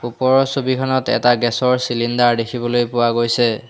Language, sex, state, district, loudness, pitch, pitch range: Assamese, male, Assam, Hailakandi, -17 LUFS, 120 Hz, 120-130 Hz